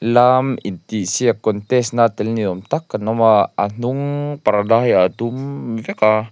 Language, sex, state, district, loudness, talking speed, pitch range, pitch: Mizo, male, Mizoram, Aizawl, -17 LUFS, 180 wpm, 105-125 Hz, 115 Hz